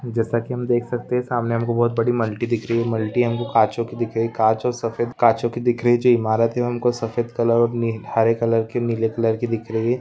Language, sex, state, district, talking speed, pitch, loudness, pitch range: Hindi, male, Maharashtra, Solapur, 260 wpm, 115 Hz, -21 LUFS, 115-120 Hz